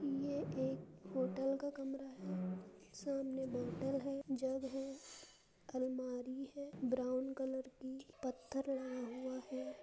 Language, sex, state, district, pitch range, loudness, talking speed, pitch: Hindi, female, Uttar Pradesh, Budaun, 255-275 Hz, -43 LUFS, 120 wpm, 265 Hz